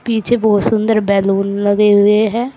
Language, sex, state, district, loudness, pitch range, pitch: Hindi, female, Uttar Pradesh, Saharanpur, -13 LUFS, 205-225 Hz, 215 Hz